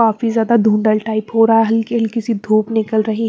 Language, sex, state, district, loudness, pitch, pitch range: Hindi, female, Bihar, West Champaran, -15 LUFS, 225 Hz, 215-230 Hz